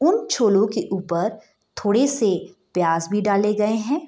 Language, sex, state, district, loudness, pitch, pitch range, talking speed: Hindi, female, Bihar, Gopalganj, -21 LUFS, 210 Hz, 190-225 Hz, 160 wpm